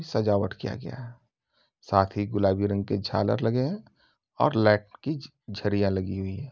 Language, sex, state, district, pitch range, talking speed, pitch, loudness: Hindi, male, Uttar Pradesh, Jyotiba Phule Nagar, 100-125 Hz, 175 wpm, 105 Hz, -27 LUFS